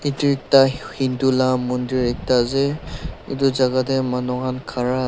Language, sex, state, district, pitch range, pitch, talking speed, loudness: Nagamese, male, Nagaland, Dimapur, 125-135 Hz, 130 Hz, 155 wpm, -20 LUFS